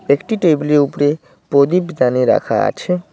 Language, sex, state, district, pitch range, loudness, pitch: Bengali, male, West Bengal, Cooch Behar, 140-180 Hz, -15 LUFS, 150 Hz